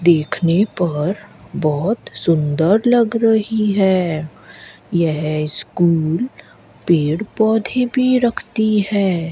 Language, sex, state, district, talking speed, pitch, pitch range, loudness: Hindi, female, Rajasthan, Bikaner, 90 wpm, 180 Hz, 160-220 Hz, -17 LUFS